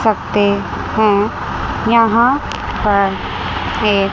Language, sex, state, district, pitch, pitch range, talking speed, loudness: Hindi, female, Chandigarh, Chandigarh, 210 Hz, 200-225 Hz, 75 wpm, -16 LUFS